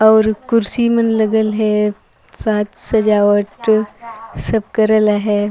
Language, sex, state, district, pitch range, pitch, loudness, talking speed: Sadri, female, Chhattisgarh, Jashpur, 210-220 Hz, 215 Hz, -15 LUFS, 130 wpm